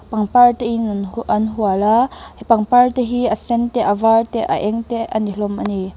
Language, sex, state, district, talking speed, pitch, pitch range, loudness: Mizo, female, Mizoram, Aizawl, 240 wpm, 225 Hz, 210-235 Hz, -17 LUFS